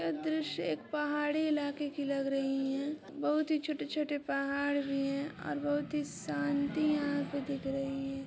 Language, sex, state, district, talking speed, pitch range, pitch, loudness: Hindi, female, Chhattisgarh, Raigarh, 175 wpm, 270-295 Hz, 280 Hz, -34 LUFS